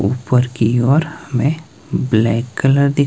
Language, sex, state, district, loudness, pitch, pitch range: Hindi, male, Himachal Pradesh, Shimla, -16 LUFS, 125 Hz, 115-140 Hz